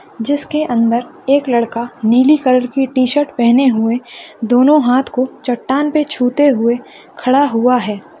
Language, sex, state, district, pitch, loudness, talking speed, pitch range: Hindi, female, Maharashtra, Solapur, 255 Hz, -14 LUFS, 140 wpm, 235-285 Hz